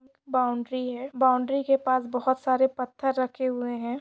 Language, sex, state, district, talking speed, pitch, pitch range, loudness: Hindi, female, Maharashtra, Pune, 165 wpm, 255 Hz, 250-265 Hz, -26 LUFS